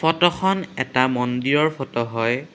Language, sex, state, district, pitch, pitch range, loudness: Assamese, male, Assam, Kamrup Metropolitan, 135 Hz, 125-160 Hz, -21 LUFS